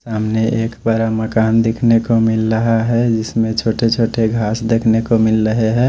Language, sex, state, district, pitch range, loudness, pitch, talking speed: Hindi, male, Chhattisgarh, Raipur, 110-115 Hz, -15 LUFS, 115 Hz, 185 wpm